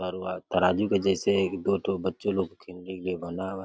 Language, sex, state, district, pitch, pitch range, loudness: Hindi, male, Uttar Pradesh, Deoria, 95 Hz, 90-95 Hz, -28 LUFS